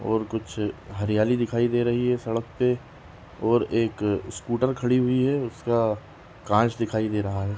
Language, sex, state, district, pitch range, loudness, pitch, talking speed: Kumaoni, male, Uttarakhand, Tehri Garhwal, 105-120 Hz, -25 LUFS, 115 Hz, 165 wpm